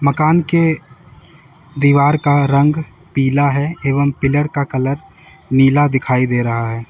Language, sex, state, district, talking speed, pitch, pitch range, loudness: Hindi, male, Uttar Pradesh, Lalitpur, 140 wpm, 140 Hz, 135-150 Hz, -15 LUFS